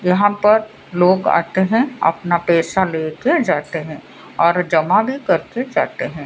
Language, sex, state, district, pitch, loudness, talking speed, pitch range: Hindi, female, Odisha, Sambalpur, 180 Hz, -17 LUFS, 155 wpm, 165-210 Hz